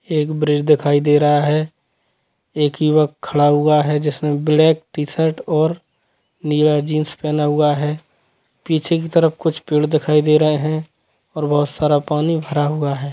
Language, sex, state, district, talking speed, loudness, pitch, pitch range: Hindi, male, Chhattisgarh, Sukma, 165 wpm, -17 LUFS, 150 Hz, 150-155 Hz